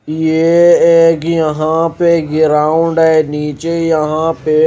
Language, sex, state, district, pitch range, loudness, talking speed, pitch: Hindi, male, Himachal Pradesh, Shimla, 155-165 Hz, -12 LUFS, 105 wpm, 160 Hz